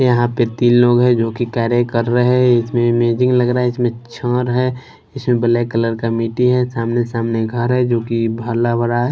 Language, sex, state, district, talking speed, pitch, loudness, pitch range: Hindi, male, Chhattisgarh, Raipur, 225 wpm, 120 Hz, -16 LUFS, 115-125 Hz